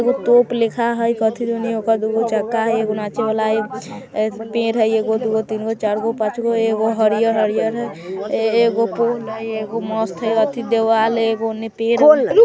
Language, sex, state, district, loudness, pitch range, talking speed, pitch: Hindi, male, Bihar, Vaishali, -18 LUFS, 220-230 Hz, 180 wpm, 225 Hz